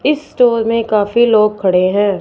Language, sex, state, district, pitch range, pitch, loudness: Hindi, female, Punjab, Fazilka, 200-235 Hz, 220 Hz, -13 LUFS